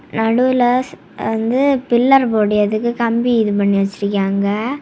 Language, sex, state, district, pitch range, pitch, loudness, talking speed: Tamil, female, Tamil Nadu, Kanyakumari, 210-250 Hz, 230 Hz, -16 LUFS, 110 wpm